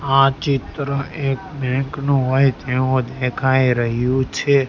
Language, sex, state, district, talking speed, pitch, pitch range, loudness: Gujarati, male, Gujarat, Gandhinagar, 140 wpm, 135 Hz, 130-140 Hz, -19 LUFS